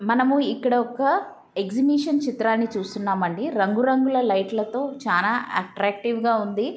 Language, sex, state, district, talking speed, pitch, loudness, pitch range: Telugu, female, Andhra Pradesh, Guntur, 135 wpm, 230 Hz, -23 LUFS, 205-260 Hz